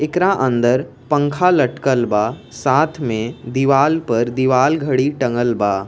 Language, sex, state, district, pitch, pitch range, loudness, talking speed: Bhojpuri, male, Bihar, East Champaran, 130 Hz, 120-150 Hz, -17 LUFS, 135 wpm